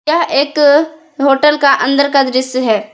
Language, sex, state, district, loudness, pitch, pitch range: Hindi, female, Jharkhand, Palamu, -12 LUFS, 280 Hz, 260-300 Hz